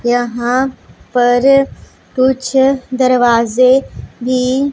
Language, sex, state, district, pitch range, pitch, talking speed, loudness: Hindi, female, Punjab, Pathankot, 245-265 Hz, 255 Hz, 65 wpm, -13 LUFS